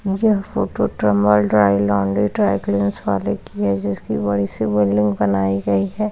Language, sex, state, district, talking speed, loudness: Hindi, female, Bihar, Saharsa, 175 wpm, -18 LUFS